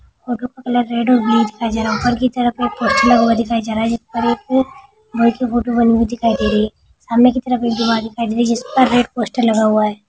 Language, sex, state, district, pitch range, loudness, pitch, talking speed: Hindi, female, Bihar, Jamui, 230-245 Hz, -16 LUFS, 235 Hz, 95 wpm